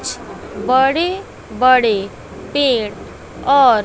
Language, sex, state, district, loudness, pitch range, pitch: Hindi, female, Bihar, West Champaran, -16 LUFS, 215-280 Hz, 255 Hz